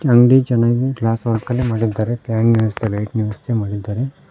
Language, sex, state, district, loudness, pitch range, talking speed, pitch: Kannada, male, Karnataka, Koppal, -18 LUFS, 110-120 Hz, 165 wpm, 115 Hz